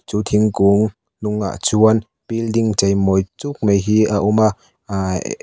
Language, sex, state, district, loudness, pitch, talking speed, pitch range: Mizo, male, Mizoram, Aizawl, -17 LUFS, 105 Hz, 165 wpm, 100-110 Hz